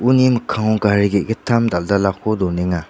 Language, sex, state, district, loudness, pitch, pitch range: Garo, male, Meghalaya, West Garo Hills, -17 LUFS, 105 Hz, 95-115 Hz